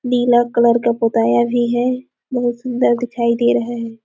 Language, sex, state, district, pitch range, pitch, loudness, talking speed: Hindi, female, Chhattisgarh, Sarguja, 235-245 Hz, 240 Hz, -17 LUFS, 180 wpm